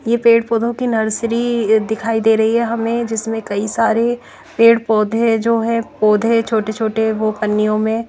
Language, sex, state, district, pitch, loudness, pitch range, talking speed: Hindi, female, Bihar, Katihar, 225 Hz, -16 LUFS, 220-230 Hz, 170 wpm